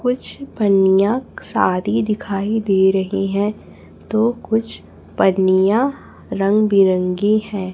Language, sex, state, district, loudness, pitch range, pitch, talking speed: Hindi, female, Chhattisgarh, Raipur, -17 LUFS, 190-220 Hz, 200 Hz, 100 wpm